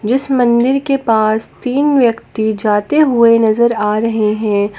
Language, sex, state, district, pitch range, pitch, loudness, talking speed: Hindi, female, Jharkhand, Palamu, 215-255 Hz, 230 Hz, -13 LUFS, 150 wpm